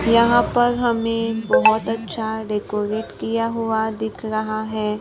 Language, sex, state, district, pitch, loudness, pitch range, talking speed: Hindi, female, Maharashtra, Gondia, 220 Hz, -20 LUFS, 215-230 Hz, 130 wpm